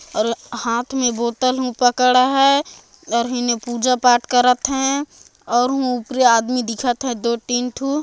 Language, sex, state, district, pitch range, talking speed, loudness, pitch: Chhattisgarhi, female, Chhattisgarh, Jashpur, 235-260 Hz, 165 wpm, -18 LUFS, 250 Hz